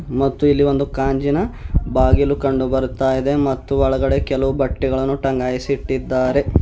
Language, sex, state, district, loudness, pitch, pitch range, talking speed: Kannada, male, Karnataka, Bidar, -18 LUFS, 135 Hz, 130-140 Hz, 100 wpm